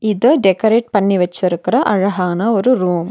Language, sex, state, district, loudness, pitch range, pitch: Tamil, female, Tamil Nadu, Nilgiris, -15 LUFS, 180-220 Hz, 195 Hz